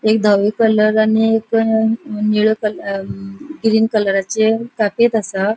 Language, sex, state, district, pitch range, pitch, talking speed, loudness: Konkani, female, Goa, North and South Goa, 210-225 Hz, 220 Hz, 120 wpm, -16 LUFS